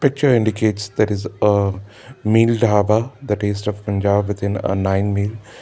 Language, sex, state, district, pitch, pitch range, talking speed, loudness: English, male, Karnataka, Bangalore, 105 Hz, 100-110 Hz, 160 wpm, -19 LUFS